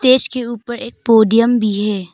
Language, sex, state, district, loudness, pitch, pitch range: Hindi, female, Arunachal Pradesh, Papum Pare, -14 LUFS, 235 Hz, 215-245 Hz